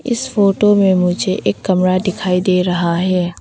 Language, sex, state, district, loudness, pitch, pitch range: Hindi, female, Arunachal Pradesh, Papum Pare, -15 LUFS, 185 Hz, 180-200 Hz